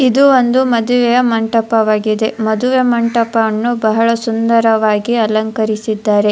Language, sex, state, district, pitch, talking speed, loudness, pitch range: Kannada, female, Karnataka, Dharwad, 230 Hz, 85 wpm, -13 LUFS, 220-240 Hz